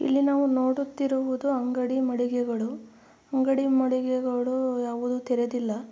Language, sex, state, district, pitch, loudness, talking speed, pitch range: Kannada, female, Karnataka, Mysore, 255 Hz, -26 LUFS, 90 wpm, 245-265 Hz